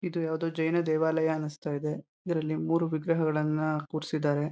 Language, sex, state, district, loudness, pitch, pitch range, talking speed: Kannada, male, Karnataka, Mysore, -30 LUFS, 155 Hz, 155-165 Hz, 120 wpm